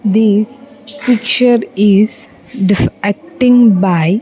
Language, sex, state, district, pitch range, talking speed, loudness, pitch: English, female, Andhra Pradesh, Sri Satya Sai, 205-250 Hz, 85 wpm, -12 LUFS, 220 Hz